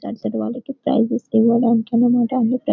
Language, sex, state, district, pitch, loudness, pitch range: Telugu, female, Telangana, Karimnagar, 235 Hz, -18 LUFS, 230-250 Hz